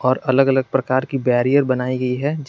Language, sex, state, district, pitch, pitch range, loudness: Hindi, male, Jharkhand, Garhwa, 130 Hz, 125-135 Hz, -18 LUFS